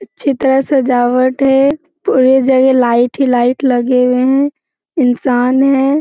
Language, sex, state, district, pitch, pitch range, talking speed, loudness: Hindi, female, Bihar, Jamui, 265 Hz, 250-275 Hz, 140 wpm, -12 LUFS